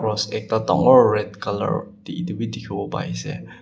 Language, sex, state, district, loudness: Nagamese, male, Nagaland, Kohima, -21 LUFS